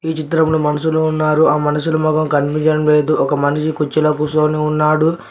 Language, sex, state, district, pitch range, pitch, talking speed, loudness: Telugu, male, Telangana, Mahabubabad, 150-155 Hz, 155 Hz, 160 wpm, -15 LUFS